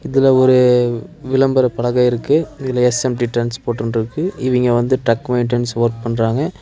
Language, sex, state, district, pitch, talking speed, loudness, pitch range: Tamil, male, Tamil Nadu, Nilgiris, 125 Hz, 135 wpm, -16 LUFS, 120-130 Hz